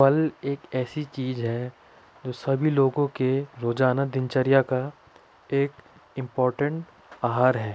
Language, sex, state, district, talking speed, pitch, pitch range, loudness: Hindi, male, Uttar Pradesh, Budaun, 125 wpm, 130 Hz, 125-140 Hz, -25 LUFS